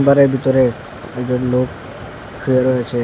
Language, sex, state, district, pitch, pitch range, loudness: Bengali, male, Assam, Hailakandi, 125 Hz, 120-130 Hz, -17 LUFS